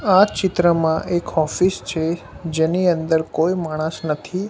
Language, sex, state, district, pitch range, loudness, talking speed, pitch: Gujarati, male, Gujarat, Gandhinagar, 160-185 Hz, -20 LUFS, 135 wpm, 165 Hz